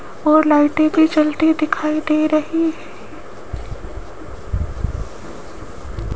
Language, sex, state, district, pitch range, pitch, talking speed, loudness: Hindi, female, Rajasthan, Jaipur, 305-320 Hz, 310 Hz, 80 wpm, -17 LUFS